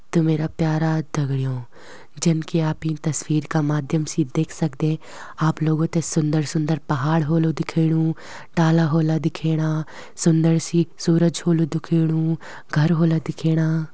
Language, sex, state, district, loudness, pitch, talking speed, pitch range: Garhwali, female, Uttarakhand, Uttarkashi, -21 LUFS, 160 Hz, 140 wpm, 155-165 Hz